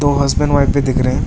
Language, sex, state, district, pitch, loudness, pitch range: Hindi, male, West Bengal, Alipurduar, 140 Hz, -15 LUFS, 130-140 Hz